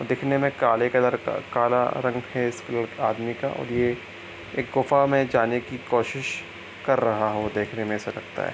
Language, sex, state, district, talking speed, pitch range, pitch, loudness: Hindi, male, Bihar, East Champaran, 190 wpm, 110-130 Hz, 120 Hz, -25 LUFS